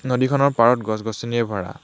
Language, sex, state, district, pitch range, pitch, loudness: Assamese, male, Assam, Hailakandi, 110-130 Hz, 120 Hz, -20 LUFS